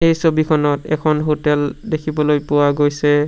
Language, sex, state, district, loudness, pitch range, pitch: Assamese, male, Assam, Sonitpur, -17 LUFS, 145-155 Hz, 150 Hz